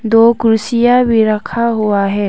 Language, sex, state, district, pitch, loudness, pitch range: Hindi, female, Arunachal Pradesh, Papum Pare, 225 Hz, -12 LUFS, 215-235 Hz